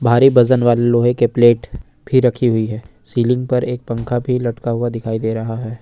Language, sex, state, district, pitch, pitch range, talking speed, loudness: Hindi, male, Jharkhand, Ranchi, 120 Hz, 115-125 Hz, 215 wpm, -16 LUFS